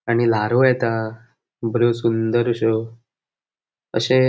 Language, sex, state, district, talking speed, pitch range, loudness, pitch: Konkani, male, Goa, North and South Goa, 110 wpm, 115-120 Hz, -20 LUFS, 115 Hz